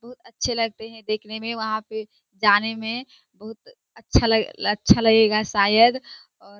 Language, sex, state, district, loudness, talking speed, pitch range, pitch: Hindi, female, Bihar, Kishanganj, -21 LUFS, 165 wpm, 215-230 Hz, 220 Hz